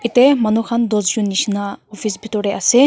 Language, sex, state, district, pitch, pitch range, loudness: Nagamese, female, Nagaland, Kohima, 215 Hz, 205-235 Hz, -17 LUFS